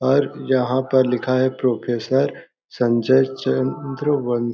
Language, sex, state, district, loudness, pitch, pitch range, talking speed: Hindi, male, Chhattisgarh, Balrampur, -20 LUFS, 130 Hz, 125-135 Hz, 120 wpm